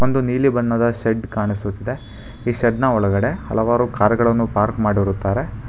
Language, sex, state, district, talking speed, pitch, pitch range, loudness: Kannada, male, Karnataka, Bangalore, 145 wpm, 115 Hz, 105-120 Hz, -19 LUFS